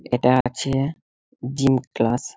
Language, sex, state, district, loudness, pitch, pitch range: Bengali, male, West Bengal, Malda, -22 LUFS, 130 Hz, 125-135 Hz